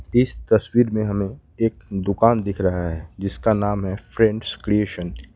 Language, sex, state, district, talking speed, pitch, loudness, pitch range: Hindi, male, West Bengal, Alipurduar, 170 wpm, 100 Hz, -22 LUFS, 95-110 Hz